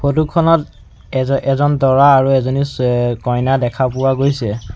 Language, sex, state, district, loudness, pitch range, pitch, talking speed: Assamese, male, Assam, Sonitpur, -15 LUFS, 125-140 Hz, 135 Hz, 150 wpm